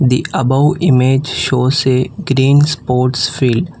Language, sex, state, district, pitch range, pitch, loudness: English, female, Telangana, Hyderabad, 130-145 Hz, 130 Hz, -13 LUFS